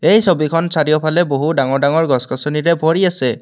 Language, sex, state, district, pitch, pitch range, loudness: Assamese, male, Assam, Kamrup Metropolitan, 155 Hz, 140-165 Hz, -15 LUFS